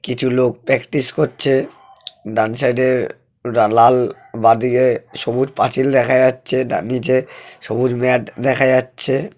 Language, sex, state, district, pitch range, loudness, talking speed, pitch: Bengali, male, West Bengal, Purulia, 120-130 Hz, -17 LUFS, 130 wpm, 125 Hz